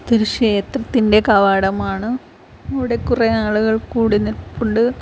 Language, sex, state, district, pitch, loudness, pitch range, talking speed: Malayalam, female, Kerala, Kollam, 220 Hz, -17 LUFS, 210-235 Hz, 95 wpm